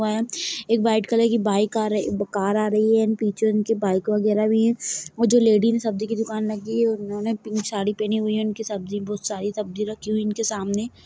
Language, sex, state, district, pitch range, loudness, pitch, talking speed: Hindi, female, Chhattisgarh, Kabirdham, 210-225 Hz, -22 LUFS, 215 Hz, 245 wpm